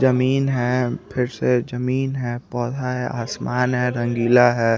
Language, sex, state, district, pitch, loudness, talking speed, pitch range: Hindi, male, Chandigarh, Chandigarh, 125 Hz, -21 LUFS, 140 wpm, 120-125 Hz